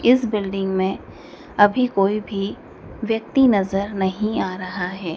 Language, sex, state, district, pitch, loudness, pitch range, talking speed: Hindi, female, Madhya Pradesh, Dhar, 200 Hz, -21 LUFS, 190-225 Hz, 130 wpm